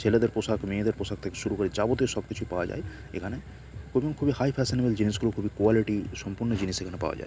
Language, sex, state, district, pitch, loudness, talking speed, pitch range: Bengali, male, West Bengal, Purulia, 110 Hz, -29 LUFS, 225 wpm, 100-115 Hz